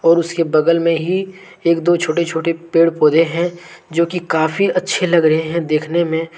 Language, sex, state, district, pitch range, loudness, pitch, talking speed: Hindi, male, Jharkhand, Deoghar, 160-175 Hz, -16 LUFS, 170 Hz, 190 wpm